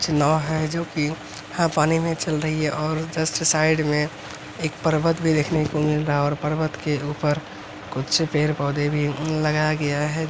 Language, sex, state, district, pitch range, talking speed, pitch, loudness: Hindi, male, Bihar, Araria, 150-160 Hz, 205 wpm, 155 Hz, -22 LUFS